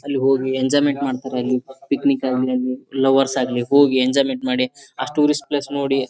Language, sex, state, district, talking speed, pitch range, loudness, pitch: Kannada, male, Karnataka, Bijapur, 165 wpm, 130-140 Hz, -19 LUFS, 135 Hz